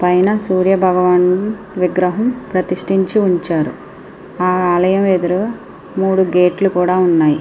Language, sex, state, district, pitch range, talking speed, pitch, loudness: Telugu, female, Andhra Pradesh, Srikakulam, 180-190 Hz, 105 wpm, 185 Hz, -15 LUFS